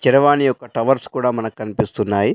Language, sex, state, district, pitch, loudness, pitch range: Telugu, male, Telangana, Adilabad, 120 Hz, -18 LUFS, 110-135 Hz